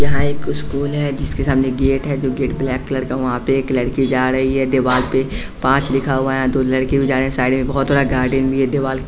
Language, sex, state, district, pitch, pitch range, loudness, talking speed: Hindi, male, Bihar, West Champaran, 135 Hz, 130-135 Hz, -18 LUFS, 265 wpm